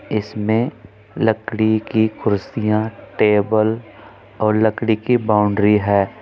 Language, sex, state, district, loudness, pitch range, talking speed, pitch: Hindi, male, Uttar Pradesh, Saharanpur, -18 LUFS, 105-110 Hz, 95 wpm, 110 Hz